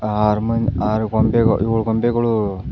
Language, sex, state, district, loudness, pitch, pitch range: Kannada, male, Karnataka, Koppal, -18 LUFS, 110 Hz, 105-115 Hz